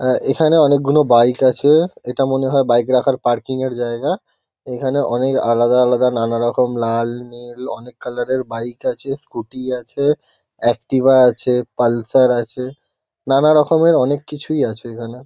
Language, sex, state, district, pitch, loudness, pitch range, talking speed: Bengali, male, West Bengal, Kolkata, 125 Hz, -16 LUFS, 120-135 Hz, 140 wpm